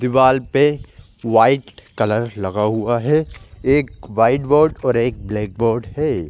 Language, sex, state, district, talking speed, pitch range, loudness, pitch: Hindi, male, Chhattisgarh, Korba, 145 wpm, 110-135 Hz, -18 LUFS, 120 Hz